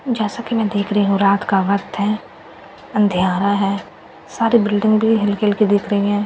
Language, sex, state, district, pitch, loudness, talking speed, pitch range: Hindi, female, Bihar, Katihar, 205 Hz, -17 LUFS, 200 wpm, 200-215 Hz